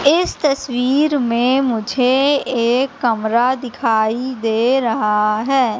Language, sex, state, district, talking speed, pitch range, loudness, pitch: Hindi, female, Madhya Pradesh, Katni, 105 wpm, 230-270 Hz, -17 LUFS, 250 Hz